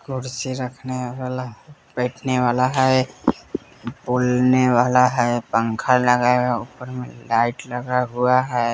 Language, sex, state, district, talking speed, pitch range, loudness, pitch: Hindi, male, Bihar, West Champaran, 125 wpm, 120-130 Hz, -20 LUFS, 125 Hz